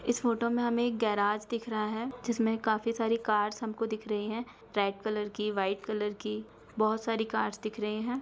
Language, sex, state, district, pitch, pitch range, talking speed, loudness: Hindi, female, Bihar, Darbhanga, 220 Hz, 210-230 Hz, 210 wpm, -32 LUFS